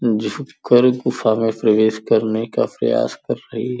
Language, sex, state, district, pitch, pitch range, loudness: Hindi, male, Uttar Pradesh, Gorakhpur, 115 Hz, 110-125 Hz, -18 LUFS